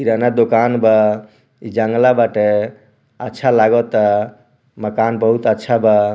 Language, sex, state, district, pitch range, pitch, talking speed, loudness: Bhojpuri, male, Bihar, Muzaffarpur, 105-120 Hz, 110 Hz, 115 wpm, -15 LUFS